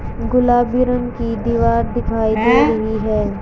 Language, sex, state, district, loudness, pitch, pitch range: Hindi, female, Haryana, Jhajjar, -17 LUFS, 225 Hz, 215-245 Hz